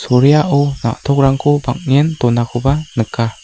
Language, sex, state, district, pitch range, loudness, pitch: Garo, male, Meghalaya, West Garo Hills, 120-145 Hz, -14 LUFS, 135 Hz